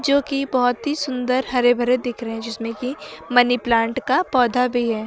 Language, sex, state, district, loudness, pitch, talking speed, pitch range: Hindi, female, Uttar Pradesh, Lucknow, -20 LUFS, 245 Hz, 215 wpm, 235-260 Hz